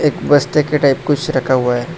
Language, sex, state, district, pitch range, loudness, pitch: Hindi, male, Assam, Hailakandi, 130-150 Hz, -15 LUFS, 145 Hz